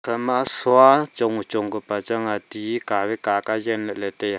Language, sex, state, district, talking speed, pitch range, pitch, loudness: Wancho, male, Arunachal Pradesh, Longding, 230 wpm, 105-120 Hz, 110 Hz, -20 LUFS